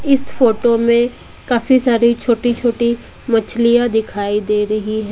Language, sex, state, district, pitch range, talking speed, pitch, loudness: Hindi, female, Odisha, Malkangiri, 220-240 Hz, 130 wpm, 235 Hz, -15 LUFS